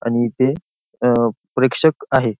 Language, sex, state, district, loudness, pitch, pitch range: Marathi, male, Maharashtra, Nagpur, -18 LUFS, 125 Hz, 120-135 Hz